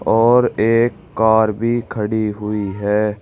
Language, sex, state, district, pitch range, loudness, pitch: Hindi, male, Uttar Pradesh, Saharanpur, 105-115 Hz, -17 LUFS, 110 Hz